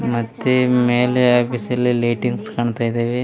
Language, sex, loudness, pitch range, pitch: Kannada, male, -18 LUFS, 120-125 Hz, 120 Hz